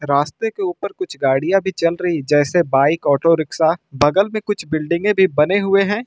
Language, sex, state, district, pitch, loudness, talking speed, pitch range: Hindi, male, Uttar Pradesh, Lucknow, 170 Hz, -17 LUFS, 200 wpm, 150-195 Hz